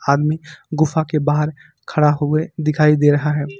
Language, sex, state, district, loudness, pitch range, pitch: Hindi, male, Jharkhand, Ranchi, -18 LUFS, 150-155 Hz, 150 Hz